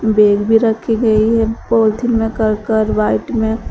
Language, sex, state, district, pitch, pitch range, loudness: Hindi, female, Uttar Pradesh, Shamli, 220 Hz, 215-225 Hz, -14 LUFS